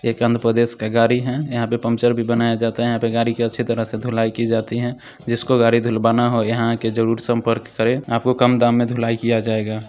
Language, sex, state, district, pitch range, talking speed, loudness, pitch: Maithili, male, Bihar, Samastipur, 115-120 Hz, 255 wpm, -19 LUFS, 115 Hz